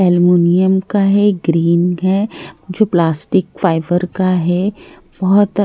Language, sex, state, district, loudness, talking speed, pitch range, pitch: Hindi, female, Bihar, Katihar, -14 LUFS, 115 wpm, 175-195 Hz, 185 Hz